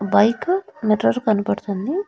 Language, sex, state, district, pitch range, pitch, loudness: Telugu, female, Andhra Pradesh, Annamaya, 205-295 Hz, 215 Hz, -20 LUFS